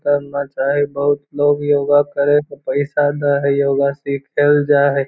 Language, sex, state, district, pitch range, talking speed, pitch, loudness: Magahi, male, Bihar, Lakhisarai, 140-145 Hz, 165 wpm, 145 Hz, -17 LUFS